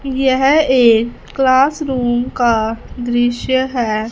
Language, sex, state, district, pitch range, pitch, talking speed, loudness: Hindi, female, Punjab, Fazilka, 235-265 Hz, 250 Hz, 85 wpm, -15 LUFS